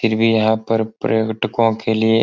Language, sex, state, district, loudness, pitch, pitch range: Hindi, male, Bihar, Jahanabad, -18 LUFS, 110 Hz, 110-115 Hz